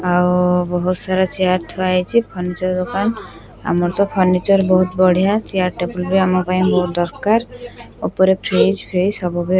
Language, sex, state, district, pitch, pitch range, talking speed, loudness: Odia, female, Odisha, Khordha, 185 Hz, 180-195 Hz, 150 wpm, -17 LUFS